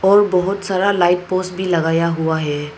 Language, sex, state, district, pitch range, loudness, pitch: Hindi, female, Arunachal Pradesh, Papum Pare, 165-190 Hz, -17 LUFS, 180 Hz